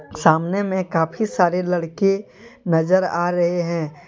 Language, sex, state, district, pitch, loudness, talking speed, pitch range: Hindi, male, Jharkhand, Deoghar, 175 Hz, -20 LUFS, 130 wpm, 170-190 Hz